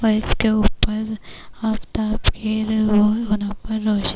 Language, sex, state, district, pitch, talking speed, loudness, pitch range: Urdu, female, Bihar, Kishanganj, 215 Hz, 60 wpm, -21 LUFS, 210-220 Hz